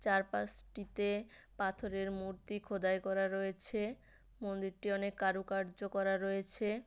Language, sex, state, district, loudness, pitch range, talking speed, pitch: Bengali, female, West Bengal, Paschim Medinipur, -38 LUFS, 195-205 Hz, 95 wpm, 195 Hz